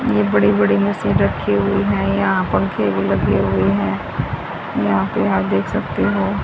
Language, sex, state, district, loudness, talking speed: Hindi, female, Haryana, Rohtak, -18 LUFS, 175 wpm